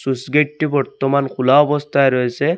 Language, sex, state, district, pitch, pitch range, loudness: Bengali, male, Assam, Hailakandi, 140 Hz, 130-150 Hz, -16 LUFS